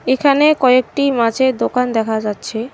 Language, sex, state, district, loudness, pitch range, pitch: Bengali, female, West Bengal, Cooch Behar, -15 LUFS, 230-275 Hz, 255 Hz